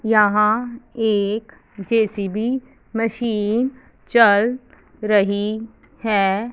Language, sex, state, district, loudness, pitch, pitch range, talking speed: Hindi, female, Punjab, Fazilka, -19 LUFS, 220 Hz, 205-235 Hz, 65 wpm